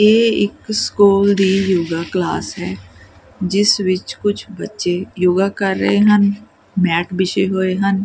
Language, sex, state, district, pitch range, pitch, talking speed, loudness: Punjabi, female, Punjab, Kapurthala, 180-200 Hz, 195 Hz, 140 wpm, -16 LUFS